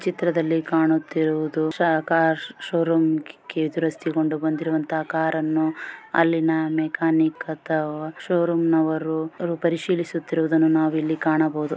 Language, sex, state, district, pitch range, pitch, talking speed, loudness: Kannada, female, Karnataka, Shimoga, 155-165 Hz, 160 Hz, 80 wpm, -23 LUFS